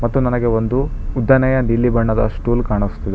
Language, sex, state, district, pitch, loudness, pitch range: Kannada, male, Karnataka, Bangalore, 120 Hz, -17 LUFS, 110-130 Hz